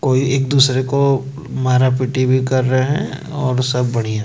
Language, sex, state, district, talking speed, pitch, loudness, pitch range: Hindi, male, Madhya Pradesh, Bhopal, 185 wpm, 130 Hz, -17 LUFS, 130-135 Hz